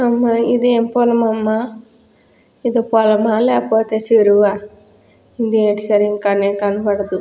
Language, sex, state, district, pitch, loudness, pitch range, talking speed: Telugu, female, Andhra Pradesh, Guntur, 220 Hz, -15 LUFS, 210-230 Hz, 85 wpm